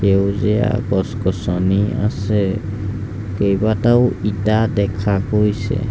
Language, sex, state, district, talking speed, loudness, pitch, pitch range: Assamese, male, Assam, Sonitpur, 80 wpm, -18 LUFS, 105 Hz, 100-110 Hz